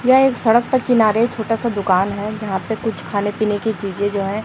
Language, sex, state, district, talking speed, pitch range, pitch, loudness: Hindi, female, Chhattisgarh, Raipur, 230 wpm, 200-230 Hz, 215 Hz, -18 LUFS